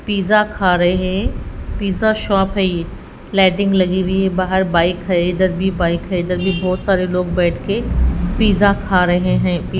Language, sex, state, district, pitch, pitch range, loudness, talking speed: Hindi, female, Haryana, Rohtak, 185 Hz, 180-195 Hz, -16 LUFS, 190 wpm